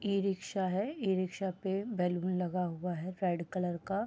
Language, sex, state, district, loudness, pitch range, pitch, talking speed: Hindi, female, Bihar, Sitamarhi, -35 LUFS, 180-195 Hz, 185 Hz, 190 wpm